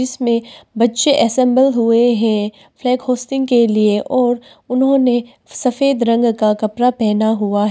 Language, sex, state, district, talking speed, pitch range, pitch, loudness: Hindi, female, Arunachal Pradesh, Papum Pare, 140 wpm, 220-255 Hz, 240 Hz, -15 LUFS